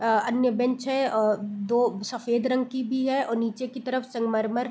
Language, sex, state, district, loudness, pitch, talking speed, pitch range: Hindi, female, Bihar, Sitamarhi, -26 LUFS, 245 Hz, 215 wpm, 225-255 Hz